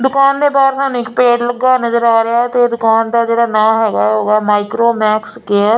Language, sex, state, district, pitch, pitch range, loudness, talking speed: Punjabi, female, Punjab, Fazilka, 235 Hz, 220-245 Hz, -12 LUFS, 230 wpm